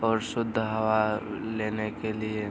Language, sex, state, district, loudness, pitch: Hindi, male, Bihar, Araria, -29 LUFS, 110 Hz